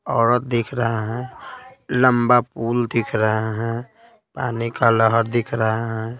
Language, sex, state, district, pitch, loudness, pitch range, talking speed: Hindi, male, Bihar, Patna, 115 Hz, -20 LUFS, 115-125 Hz, 145 wpm